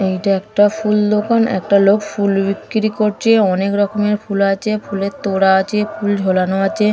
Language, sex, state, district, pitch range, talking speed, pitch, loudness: Bengali, female, West Bengal, Dakshin Dinajpur, 195-210 Hz, 165 wpm, 205 Hz, -16 LUFS